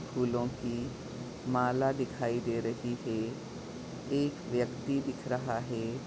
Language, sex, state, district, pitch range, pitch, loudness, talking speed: Hindi, male, Chhattisgarh, Sukma, 120-130 Hz, 125 Hz, -34 LUFS, 120 wpm